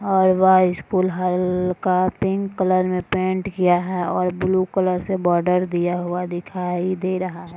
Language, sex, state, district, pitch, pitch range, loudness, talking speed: Hindi, female, Bihar, Purnia, 185 Hz, 180-185 Hz, -20 LUFS, 165 wpm